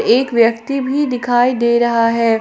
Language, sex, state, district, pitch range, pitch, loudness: Hindi, female, Jharkhand, Palamu, 230-255 Hz, 240 Hz, -15 LUFS